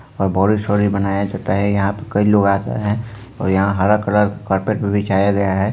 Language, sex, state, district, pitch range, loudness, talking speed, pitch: Hindi, male, Bihar, Sitamarhi, 100-105 Hz, -17 LUFS, 210 wpm, 100 Hz